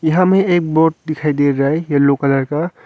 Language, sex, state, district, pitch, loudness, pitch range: Hindi, male, Arunachal Pradesh, Longding, 155 Hz, -15 LUFS, 140-165 Hz